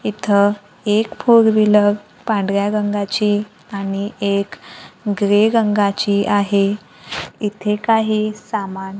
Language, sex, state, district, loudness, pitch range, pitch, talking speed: Marathi, female, Maharashtra, Gondia, -17 LUFS, 200-215 Hz, 205 Hz, 95 wpm